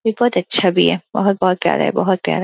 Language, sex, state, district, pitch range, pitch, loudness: Hindi, female, Uttar Pradesh, Gorakhpur, 180-220 Hz, 190 Hz, -16 LUFS